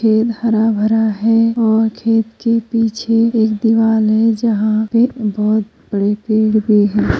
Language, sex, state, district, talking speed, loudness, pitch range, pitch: Hindi, female, Uttar Pradesh, Jyotiba Phule Nagar, 150 wpm, -15 LUFS, 215-225 Hz, 220 Hz